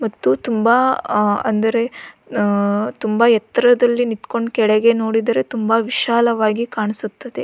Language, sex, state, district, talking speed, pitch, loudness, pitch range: Kannada, female, Karnataka, Belgaum, 90 wpm, 225 Hz, -17 LUFS, 215-235 Hz